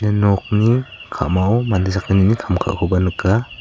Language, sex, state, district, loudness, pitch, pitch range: Garo, male, Meghalaya, South Garo Hills, -17 LUFS, 100 Hz, 95-110 Hz